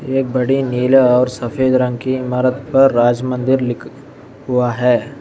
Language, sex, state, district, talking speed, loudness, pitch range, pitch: Hindi, male, Arunachal Pradesh, Lower Dibang Valley, 160 wpm, -15 LUFS, 125-135 Hz, 130 Hz